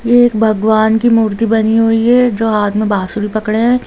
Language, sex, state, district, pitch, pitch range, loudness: Hindi, female, Jharkhand, Jamtara, 220 Hz, 215-235 Hz, -12 LUFS